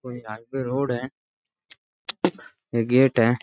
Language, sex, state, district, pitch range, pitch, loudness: Rajasthani, male, Rajasthan, Nagaur, 115-130 Hz, 125 Hz, -24 LUFS